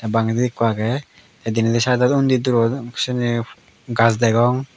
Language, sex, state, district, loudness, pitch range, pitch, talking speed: Chakma, male, Tripura, Dhalai, -19 LUFS, 115-125 Hz, 120 Hz, 140 wpm